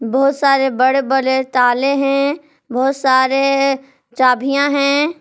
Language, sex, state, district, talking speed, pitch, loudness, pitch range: Hindi, female, Jharkhand, Palamu, 115 wpm, 270 Hz, -15 LUFS, 260-275 Hz